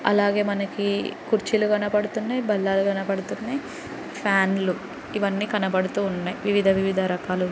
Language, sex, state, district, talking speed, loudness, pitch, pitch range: Telugu, female, Andhra Pradesh, Guntur, 95 wpm, -24 LUFS, 200 Hz, 195-210 Hz